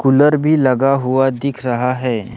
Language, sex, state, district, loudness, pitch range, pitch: Hindi, male, Maharashtra, Gondia, -15 LUFS, 125-140 Hz, 130 Hz